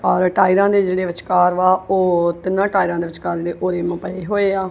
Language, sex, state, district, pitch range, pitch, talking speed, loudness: Punjabi, female, Punjab, Kapurthala, 175-190 Hz, 185 Hz, 190 wpm, -18 LUFS